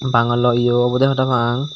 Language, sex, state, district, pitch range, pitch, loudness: Chakma, male, Tripura, Dhalai, 120-130 Hz, 125 Hz, -17 LUFS